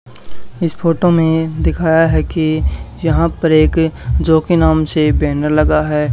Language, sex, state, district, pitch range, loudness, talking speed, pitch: Hindi, male, Haryana, Charkhi Dadri, 155-165 Hz, -14 LUFS, 145 wpm, 160 Hz